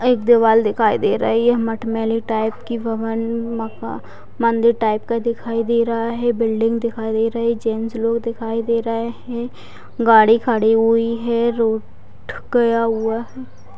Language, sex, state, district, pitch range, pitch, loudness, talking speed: Hindi, female, Bihar, Purnia, 225-235 Hz, 230 Hz, -18 LUFS, 160 wpm